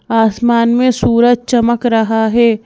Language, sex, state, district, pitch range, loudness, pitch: Hindi, female, Madhya Pradesh, Bhopal, 225-240 Hz, -12 LUFS, 235 Hz